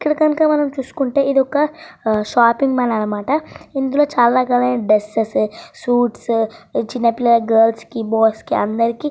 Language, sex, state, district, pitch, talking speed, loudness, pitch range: Telugu, female, Andhra Pradesh, Srikakulam, 245 Hz, 120 wpm, -17 LUFS, 225-280 Hz